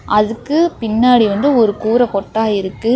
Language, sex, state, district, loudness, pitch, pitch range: Tamil, female, Tamil Nadu, Namakkal, -14 LUFS, 225 Hz, 210-245 Hz